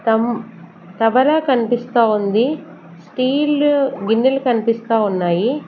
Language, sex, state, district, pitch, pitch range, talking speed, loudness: Telugu, female, Andhra Pradesh, Sri Satya Sai, 230 Hz, 215-260 Hz, 85 wpm, -17 LUFS